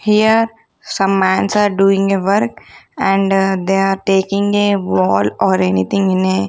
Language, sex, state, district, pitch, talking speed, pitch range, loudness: English, female, Punjab, Kapurthala, 195 Hz, 155 wpm, 190-205 Hz, -15 LUFS